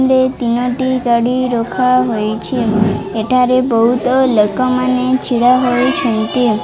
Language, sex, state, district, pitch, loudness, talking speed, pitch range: Odia, female, Odisha, Malkangiri, 250 Hz, -14 LUFS, 90 wpm, 230-255 Hz